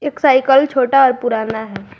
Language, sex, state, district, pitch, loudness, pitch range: Hindi, female, Jharkhand, Garhwa, 260 Hz, -14 LUFS, 220-275 Hz